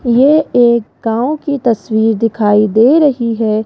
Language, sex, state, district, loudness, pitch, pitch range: Hindi, female, Rajasthan, Jaipur, -12 LUFS, 235 Hz, 220-270 Hz